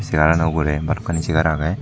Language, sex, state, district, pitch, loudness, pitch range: Chakma, male, Tripura, Dhalai, 80 Hz, -19 LUFS, 75-85 Hz